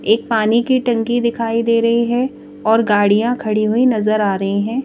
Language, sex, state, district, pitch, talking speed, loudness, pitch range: Hindi, female, Madhya Pradesh, Bhopal, 230 Hz, 200 wpm, -16 LUFS, 215-240 Hz